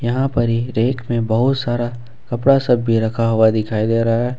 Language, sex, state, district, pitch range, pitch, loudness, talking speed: Hindi, male, Jharkhand, Ranchi, 115-125 Hz, 120 Hz, -17 LUFS, 220 wpm